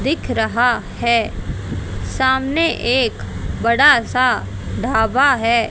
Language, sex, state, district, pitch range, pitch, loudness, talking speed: Hindi, female, Haryana, Rohtak, 220-265 Hz, 240 Hz, -17 LUFS, 95 wpm